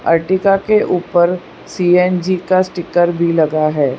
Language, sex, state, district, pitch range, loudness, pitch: Hindi, female, Gujarat, Valsad, 170-185 Hz, -14 LUFS, 175 Hz